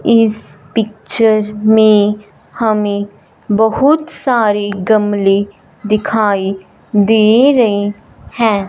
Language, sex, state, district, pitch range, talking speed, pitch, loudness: Hindi, female, Punjab, Fazilka, 205-225 Hz, 75 wpm, 215 Hz, -13 LUFS